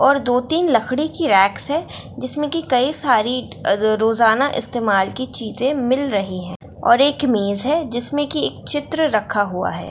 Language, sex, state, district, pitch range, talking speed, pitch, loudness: Hindi, female, Bihar, Gaya, 215-290 Hz, 170 wpm, 250 Hz, -18 LUFS